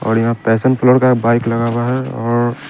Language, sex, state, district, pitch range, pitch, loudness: Hindi, male, Chandigarh, Chandigarh, 115-130 Hz, 120 Hz, -15 LUFS